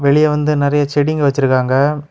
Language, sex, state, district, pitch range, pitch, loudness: Tamil, male, Tamil Nadu, Kanyakumari, 140-150 Hz, 145 Hz, -14 LUFS